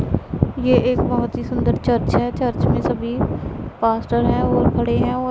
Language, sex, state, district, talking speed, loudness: Hindi, female, Punjab, Pathankot, 180 wpm, -19 LUFS